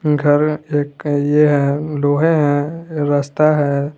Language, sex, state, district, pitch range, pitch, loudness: Hindi, male, Jharkhand, Garhwa, 145-150 Hz, 145 Hz, -16 LUFS